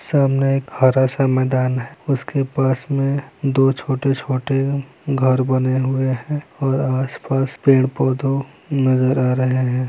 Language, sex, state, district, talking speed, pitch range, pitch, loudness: Hindi, male, Bihar, Saran, 135 wpm, 130-135 Hz, 135 Hz, -19 LUFS